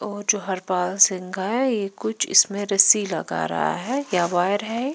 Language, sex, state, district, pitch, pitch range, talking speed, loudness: Hindi, female, Punjab, Pathankot, 195 Hz, 180-210 Hz, 195 wpm, -21 LUFS